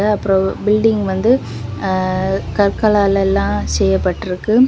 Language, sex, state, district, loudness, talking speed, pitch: Tamil, female, Tamil Nadu, Kanyakumari, -16 LUFS, 75 wpm, 195 Hz